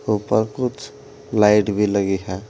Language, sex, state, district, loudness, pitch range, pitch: Hindi, male, Uttar Pradesh, Saharanpur, -19 LUFS, 105-130 Hz, 105 Hz